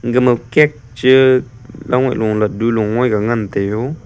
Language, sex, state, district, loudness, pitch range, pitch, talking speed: Wancho, male, Arunachal Pradesh, Longding, -15 LUFS, 110-130 Hz, 120 Hz, 135 wpm